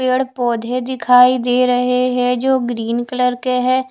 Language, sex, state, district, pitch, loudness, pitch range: Hindi, female, Odisha, Khordha, 250 Hz, -16 LUFS, 245-255 Hz